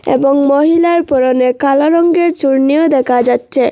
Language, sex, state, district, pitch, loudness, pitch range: Bengali, female, Assam, Hailakandi, 280 Hz, -11 LUFS, 260-330 Hz